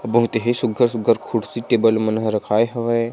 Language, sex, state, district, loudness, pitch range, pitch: Chhattisgarhi, male, Chhattisgarh, Sarguja, -19 LUFS, 110-120 Hz, 115 Hz